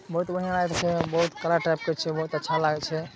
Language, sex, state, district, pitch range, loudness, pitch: Maithili, male, Bihar, Saharsa, 160-175 Hz, -26 LUFS, 165 Hz